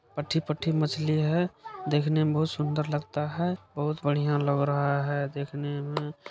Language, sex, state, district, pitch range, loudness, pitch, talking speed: Maithili, male, Bihar, Supaul, 145-155 Hz, -28 LUFS, 150 Hz, 160 wpm